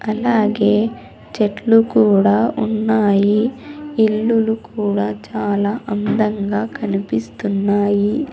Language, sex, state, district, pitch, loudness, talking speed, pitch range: Telugu, female, Andhra Pradesh, Sri Satya Sai, 215 Hz, -17 LUFS, 65 wpm, 205-225 Hz